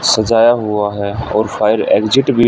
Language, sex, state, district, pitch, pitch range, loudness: Hindi, male, Haryana, Rohtak, 110 Hz, 105-120 Hz, -14 LUFS